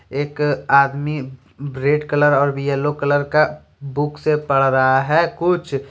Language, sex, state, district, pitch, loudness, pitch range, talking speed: Hindi, male, Jharkhand, Deoghar, 145 Hz, -18 LUFS, 140-150 Hz, 140 wpm